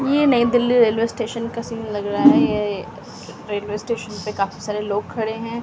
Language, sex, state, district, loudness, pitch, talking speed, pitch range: Hindi, female, Delhi, New Delhi, -20 LUFS, 225 Hz, 215 wpm, 210-235 Hz